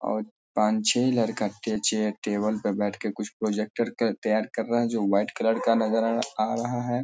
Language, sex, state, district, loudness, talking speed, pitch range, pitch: Hindi, male, Bihar, Darbhanga, -26 LUFS, 220 wpm, 105-115 Hz, 110 Hz